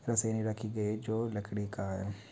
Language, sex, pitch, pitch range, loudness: Hindi, male, 110 Hz, 105-110 Hz, -35 LUFS